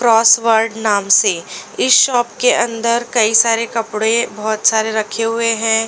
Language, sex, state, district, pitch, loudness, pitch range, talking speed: Hindi, female, Delhi, New Delhi, 225 Hz, -14 LUFS, 220-235 Hz, 155 wpm